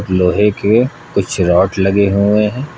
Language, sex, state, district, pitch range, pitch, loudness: Hindi, male, Uttar Pradesh, Lucknow, 95-105 Hz, 100 Hz, -13 LUFS